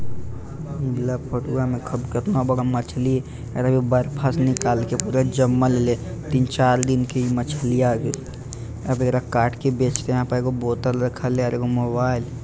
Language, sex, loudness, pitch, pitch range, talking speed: Bhojpuri, male, -22 LUFS, 125 Hz, 120-130 Hz, 180 wpm